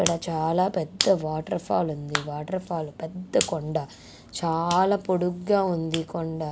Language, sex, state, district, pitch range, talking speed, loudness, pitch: Telugu, female, Andhra Pradesh, Guntur, 160-185 Hz, 140 wpm, -26 LUFS, 165 Hz